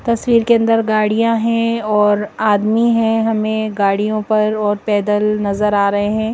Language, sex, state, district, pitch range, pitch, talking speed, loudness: Hindi, female, Madhya Pradesh, Bhopal, 210-225 Hz, 215 Hz, 160 wpm, -15 LUFS